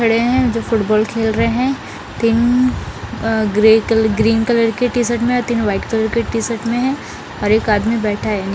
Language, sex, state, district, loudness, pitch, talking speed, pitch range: Hindi, female, Bihar, Patna, -16 LUFS, 230 Hz, 205 wpm, 220-235 Hz